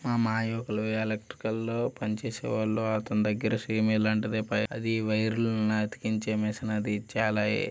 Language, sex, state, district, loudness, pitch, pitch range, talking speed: Telugu, male, Andhra Pradesh, Srikakulam, -29 LUFS, 110 Hz, 105-110 Hz, 125 wpm